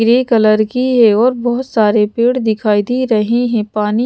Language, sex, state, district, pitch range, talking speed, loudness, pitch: Hindi, female, Chandigarh, Chandigarh, 215-245 Hz, 190 wpm, -13 LUFS, 230 Hz